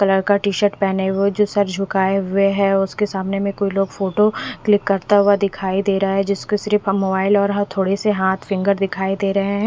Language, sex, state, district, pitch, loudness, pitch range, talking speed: Hindi, female, Bihar, Katihar, 195 Hz, -18 LUFS, 195-205 Hz, 230 wpm